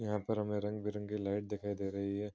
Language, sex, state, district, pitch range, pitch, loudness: Hindi, male, Bihar, Kishanganj, 100-105 Hz, 105 Hz, -38 LUFS